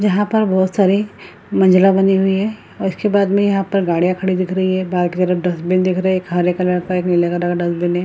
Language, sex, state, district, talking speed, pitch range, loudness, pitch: Hindi, female, Bihar, Lakhisarai, 285 wpm, 180-195 Hz, -16 LUFS, 185 Hz